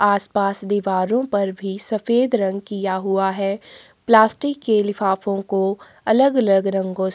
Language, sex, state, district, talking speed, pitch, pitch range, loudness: Hindi, female, Chhattisgarh, Sukma, 150 wpm, 200 Hz, 195-220 Hz, -20 LUFS